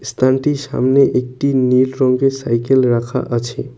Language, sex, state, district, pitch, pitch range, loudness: Bengali, male, West Bengal, Cooch Behar, 130 Hz, 125-135 Hz, -16 LUFS